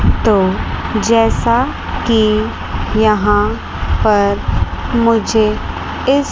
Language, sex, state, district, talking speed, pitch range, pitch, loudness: Hindi, female, Chandigarh, Chandigarh, 65 wpm, 200-225 Hz, 215 Hz, -15 LUFS